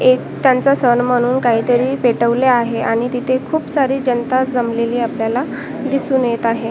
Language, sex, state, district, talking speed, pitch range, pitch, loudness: Marathi, female, Maharashtra, Washim, 150 wpm, 235-265 Hz, 250 Hz, -16 LUFS